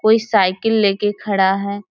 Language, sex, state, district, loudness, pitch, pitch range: Hindi, female, Jharkhand, Sahebganj, -17 LUFS, 205 Hz, 195-215 Hz